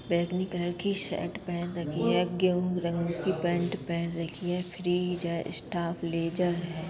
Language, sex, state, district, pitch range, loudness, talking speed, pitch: Bundeli, female, Uttar Pradesh, Budaun, 170-180 Hz, -30 LUFS, 190 wpm, 175 Hz